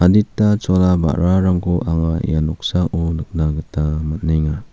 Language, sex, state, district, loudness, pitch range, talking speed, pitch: Garo, male, Meghalaya, South Garo Hills, -18 LUFS, 80-90 Hz, 115 wpm, 85 Hz